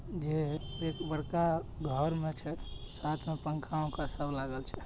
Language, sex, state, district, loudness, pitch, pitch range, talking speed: Hindi, male, Bihar, Purnia, -36 LUFS, 155 Hz, 150-160 Hz, 160 wpm